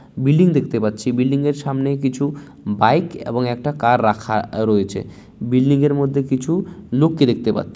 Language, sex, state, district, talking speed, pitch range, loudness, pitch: Bengali, male, West Bengal, Malda, 155 wpm, 110-145 Hz, -18 LUFS, 130 Hz